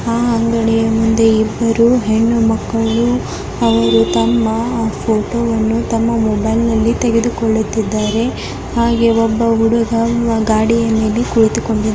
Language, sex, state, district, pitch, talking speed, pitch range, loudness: Kannada, female, Karnataka, Belgaum, 225 Hz, 85 wpm, 220-230 Hz, -14 LUFS